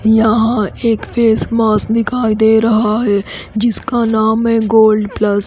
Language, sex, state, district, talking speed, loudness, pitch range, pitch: Hindi, female, Odisha, Khordha, 155 wpm, -13 LUFS, 215-230 Hz, 220 Hz